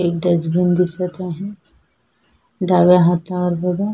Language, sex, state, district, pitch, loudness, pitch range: Marathi, female, Maharashtra, Sindhudurg, 180 Hz, -17 LUFS, 175-180 Hz